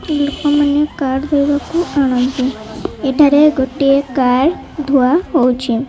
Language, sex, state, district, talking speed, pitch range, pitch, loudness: Odia, female, Odisha, Malkangiri, 80 wpm, 260-295 Hz, 280 Hz, -14 LUFS